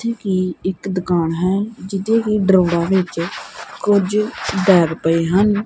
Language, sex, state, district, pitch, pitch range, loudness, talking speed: Punjabi, male, Punjab, Kapurthala, 190 Hz, 175-205 Hz, -18 LUFS, 125 wpm